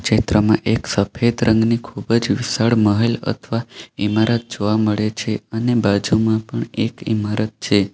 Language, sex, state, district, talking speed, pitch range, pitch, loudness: Gujarati, male, Gujarat, Valsad, 135 wpm, 105-115 Hz, 110 Hz, -19 LUFS